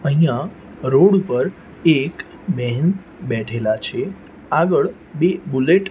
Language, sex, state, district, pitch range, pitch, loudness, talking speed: Gujarati, male, Gujarat, Gandhinagar, 125-180 Hz, 155 Hz, -19 LUFS, 110 wpm